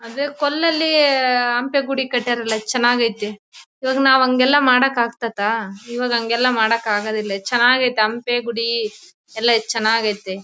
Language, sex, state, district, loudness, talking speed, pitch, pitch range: Kannada, female, Karnataka, Bellary, -18 LUFS, 125 wpm, 240 Hz, 220-255 Hz